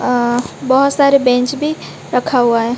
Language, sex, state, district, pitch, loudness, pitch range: Hindi, female, Odisha, Malkangiri, 250 Hz, -14 LUFS, 245-275 Hz